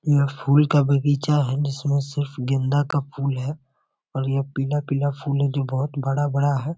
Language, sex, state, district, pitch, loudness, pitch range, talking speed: Hindi, male, Bihar, Muzaffarpur, 140 Hz, -22 LUFS, 135-145 Hz, 195 wpm